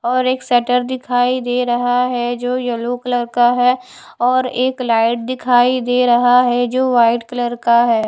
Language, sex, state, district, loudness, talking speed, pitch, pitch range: Hindi, female, Punjab, Fazilka, -16 LUFS, 180 wpm, 245 Hz, 240-250 Hz